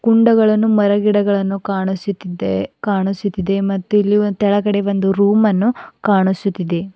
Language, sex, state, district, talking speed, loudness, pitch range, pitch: Kannada, female, Karnataka, Bidar, 110 wpm, -16 LUFS, 195-210 Hz, 200 Hz